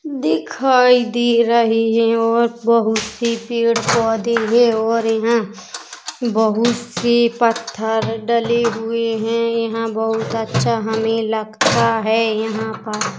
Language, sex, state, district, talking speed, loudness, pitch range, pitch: Hindi, female, Uttar Pradesh, Jalaun, 105 wpm, -17 LUFS, 220-235 Hz, 230 Hz